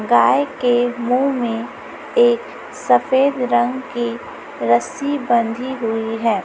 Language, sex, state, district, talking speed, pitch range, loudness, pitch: Hindi, female, Chhattisgarh, Raipur, 110 wpm, 230-265 Hz, -18 LUFS, 245 Hz